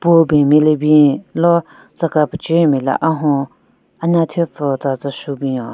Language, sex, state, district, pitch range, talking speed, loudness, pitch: Rengma, female, Nagaland, Kohima, 140-165 Hz, 180 wpm, -15 LUFS, 150 Hz